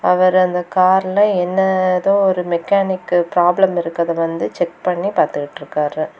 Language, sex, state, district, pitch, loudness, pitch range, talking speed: Tamil, female, Tamil Nadu, Kanyakumari, 180 Hz, -16 LUFS, 170-185 Hz, 115 wpm